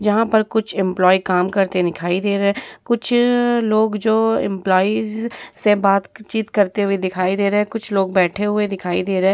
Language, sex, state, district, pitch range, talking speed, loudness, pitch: Hindi, female, Bihar, Vaishali, 190-220 Hz, 190 wpm, -18 LUFS, 200 Hz